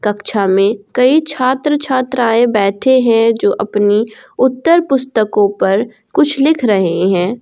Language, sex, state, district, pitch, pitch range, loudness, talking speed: Hindi, female, Jharkhand, Garhwa, 230 Hz, 205-260 Hz, -13 LUFS, 130 wpm